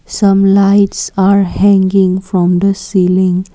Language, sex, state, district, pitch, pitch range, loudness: English, female, Assam, Kamrup Metropolitan, 195 Hz, 185-200 Hz, -11 LUFS